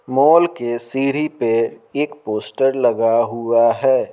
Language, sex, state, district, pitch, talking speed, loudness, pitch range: Hindi, male, Bihar, Patna, 120 Hz, 130 wpm, -17 LUFS, 115-135 Hz